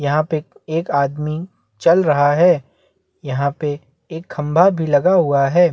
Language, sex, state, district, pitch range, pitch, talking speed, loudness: Hindi, male, Chhattisgarh, Bastar, 145-170 Hz, 155 Hz, 155 wpm, -17 LUFS